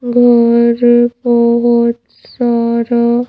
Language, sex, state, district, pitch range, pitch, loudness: Hindi, female, Madhya Pradesh, Bhopal, 235-240 Hz, 235 Hz, -11 LUFS